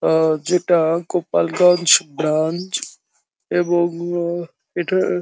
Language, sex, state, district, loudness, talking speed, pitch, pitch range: Bengali, male, West Bengal, Jhargram, -18 LUFS, 90 wpm, 175 Hz, 160-180 Hz